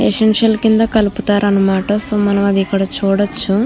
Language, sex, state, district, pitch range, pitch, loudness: Telugu, female, Andhra Pradesh, Krishna, 200-220 Hz, 205 Hz, -14 LUFS